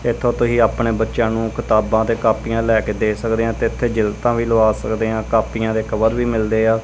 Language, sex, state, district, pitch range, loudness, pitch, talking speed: Punjabi, male, Punjab, Kapurthala, 110-115 Hz, -18 LUFS, 115 Hz, 230 wpm